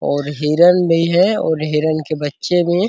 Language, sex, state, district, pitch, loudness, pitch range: Hindi, male, Bihar, Araria, 160 Hz, -16 LUFS, 155-175 Hz